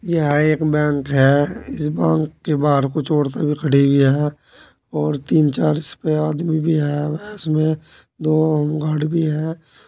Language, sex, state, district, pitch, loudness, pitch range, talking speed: Hindi, male, Uttar Pradesh, Saharanpur, 150 Hz, -19 LUFS, 145-155 Hz, 160 wpm